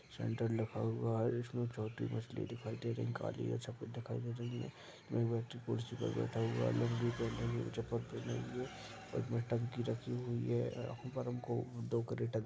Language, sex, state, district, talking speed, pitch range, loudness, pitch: Hindi, male, Bihar, Madhepura, 200 wpm, 110-120 Hz, -40 LUFS, 115 Hz